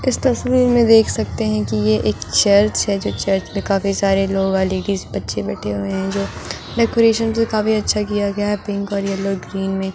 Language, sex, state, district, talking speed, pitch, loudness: Hindi, female, Delhi, New Delhi, 210 wpm, 195 Hz, -18 LUFS